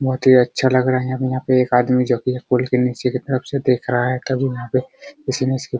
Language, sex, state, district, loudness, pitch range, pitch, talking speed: Hindi, male, Bihar, Araria, -18 LUFS, 125-130 Hz, 130 Hz, 280 wpm